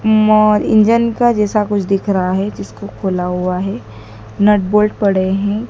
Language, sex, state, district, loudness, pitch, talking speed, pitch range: Hindi, female, Madhya Pradesh, Dhar, -14 LUFS, 200 Hz, 180 wpm, 185-215 Hz